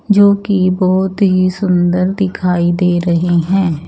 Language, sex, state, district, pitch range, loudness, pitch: Hindi, female, Chandigarh, Chandigarh, 175-195 Hz, -13 LUFS, 185 Hz